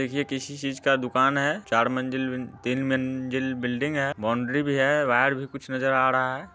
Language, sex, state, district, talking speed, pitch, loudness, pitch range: Hindi, male, Bihar, Muzaffarpur, 210 wpm, 130 Hz, -25 LUFS, 130-140 Hz